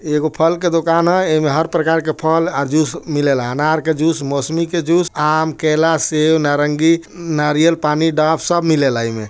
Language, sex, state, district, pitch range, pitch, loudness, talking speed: Bhojpuri, male, Bihar, Gopalganj, 150-165 Hz, 155 Hz, -16 LUFS, 205 wpm